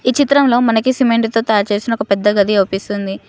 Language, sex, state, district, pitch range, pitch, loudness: Telugu, female, Telangana, Mahabubabad, 205-245 Hz, 225 Hz, -14 LUFS